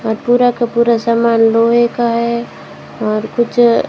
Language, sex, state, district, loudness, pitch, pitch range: Hindi, female, Rajasthan, Jaisalmer, -13 LUFS, 235 Hz, 230-240 Hz